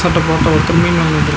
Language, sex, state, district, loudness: Tamil, male, Tamil Nadu, Nilgiris, -13 LUFS